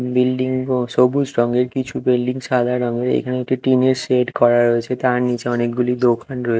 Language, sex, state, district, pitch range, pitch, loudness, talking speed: Bengali, male, Odisha, Khordha, 120-130 Hz, 125 Hz, -18 LUFS, 180 wpm